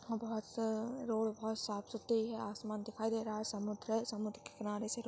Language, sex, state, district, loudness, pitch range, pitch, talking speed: Hindi, male, Maharashtra, Dhule, -40 LUFS, 215-225 Hz, 220 Hz, 200 wpm